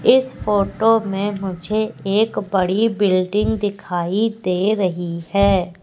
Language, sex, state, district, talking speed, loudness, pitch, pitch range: Hindi, female, Madhya Pradesh, Katni, 115 wpm, -19 LUFS, 200 Hz, 185-215 Hz